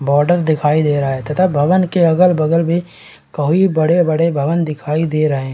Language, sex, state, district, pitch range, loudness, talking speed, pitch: Hindi, male, Bihar, Kishanganj, 150-175 Hz, -15 LUFS, 185 wpm, 160 Hz